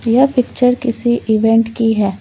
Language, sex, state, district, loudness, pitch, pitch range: Hindi, female, West Bengal, Alipurduar, -14 LUFS, 235 Hz, 225-245 Hz